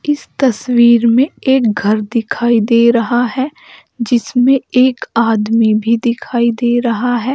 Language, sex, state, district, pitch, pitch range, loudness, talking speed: Hindi, female, Uttar Pradesh, Saharanpur, 240 Hz, 230-255 Hz, -13 LUFS, 140 wpm